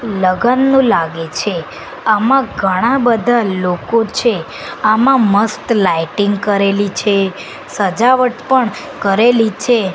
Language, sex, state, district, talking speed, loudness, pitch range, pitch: Gujarati, female, Gujarat, Gandhinagar, 105 wpm, -14 LUFS, 195-240 Hz, 215 Hz